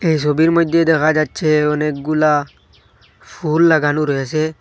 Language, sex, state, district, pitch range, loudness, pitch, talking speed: Bengali, male, Assam, Hailakandi, 145-160 Hz, -16 LUFS, 155 Hz, 115 wpm